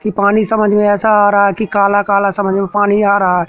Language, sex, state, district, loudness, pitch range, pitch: Hindi, male, Madhya Pradesh, Katni, -12 LUFS, 200-210 Hz, 205 Hz